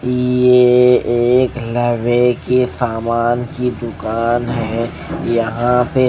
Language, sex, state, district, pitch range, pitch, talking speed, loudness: Hindi, male, Maharashtra, Gondia, 115-125 Hz, 120 Hz, 100 wpm, -15 LUFS